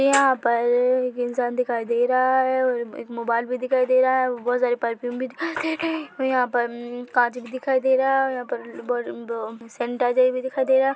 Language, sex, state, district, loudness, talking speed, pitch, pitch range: Hindi, female, Chhattisgarh, Bilaspur, -23 LUFS, 235 wpm, 250 Hz, 240-260 Hz